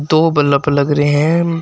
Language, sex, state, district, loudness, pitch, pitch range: Hindi, male, Uttar Pradesh, Shamli, -14 LUFS, 150 Hz, 145-165 Hz